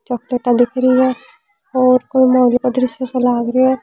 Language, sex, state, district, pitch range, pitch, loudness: Rajasthani, female, Rajasthan, Churu, 245-260 Hz, 255 Hz, -15 LUFS